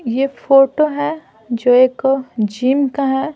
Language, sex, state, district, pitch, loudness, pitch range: Hindi, female, Bihar, Patna, 270 Hz, -16 LUFS, 250-280 Hz